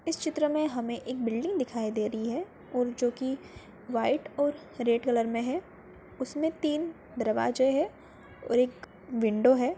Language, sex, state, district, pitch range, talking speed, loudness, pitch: Hindi, female, Bihar, Madhepura, 230-300 Hz, 165 wpm, -30 LUFS, 250 Hz